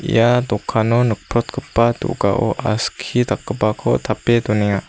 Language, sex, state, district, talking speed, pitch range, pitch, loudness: Garo, female, Meghalaya, South Garo Hills, 100 wpm, 105-120 Hz, 115 Hz, -18 LUFS